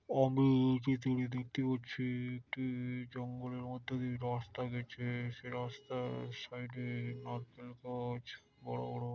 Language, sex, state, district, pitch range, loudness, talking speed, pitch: Bengali, male, West Bengal, Dakshin Dinajpur, 120-125 Hz, -38 LUFS, 125 wpm, 125 Hz